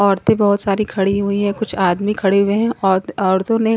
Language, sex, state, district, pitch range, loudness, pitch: Hindi, female, Punjab, Kapurthala, 195-210 Hz, -17 LUFS, 200 Hz